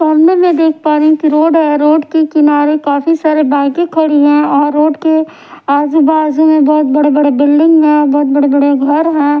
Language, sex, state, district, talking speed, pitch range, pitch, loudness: Hindi, female, Odisha, Sambalpur, 200 wpm, 290-315 Hz, 300 Hz, -10 LUFS